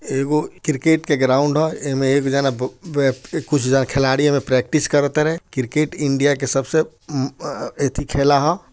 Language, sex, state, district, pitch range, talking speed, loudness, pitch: Bhojpuri, male, Bihar, Gopalganj, 135-150 Hz, 165 wpm, -19 LUFS, 140 Hz